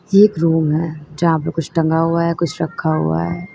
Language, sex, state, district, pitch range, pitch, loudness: Hindi, female, Uttar Pradesh, Lalitpur, 155-170 Hz, 165 Hz, -17 LUFS